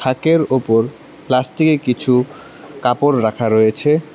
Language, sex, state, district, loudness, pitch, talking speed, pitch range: Bengali, male, West Bengal, Cooch Behar, -16 LUFS, 130 Hz, 100 wpm, 120-150 Hz